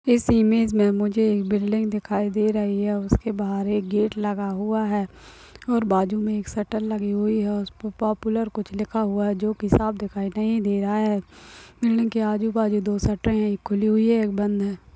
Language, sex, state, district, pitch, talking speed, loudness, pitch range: Hindi, female, Chhattisgarh, Kabirdham, 210 Hz, 205 wpm, -23 LUFS, 205-220 Hz